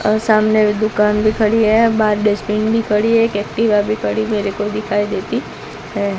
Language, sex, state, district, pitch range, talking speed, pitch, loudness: Hindi, female, Gujarat, Gandhinagar, 210-220 Hz, 195 wpm, 215 Hz, -16 LUFS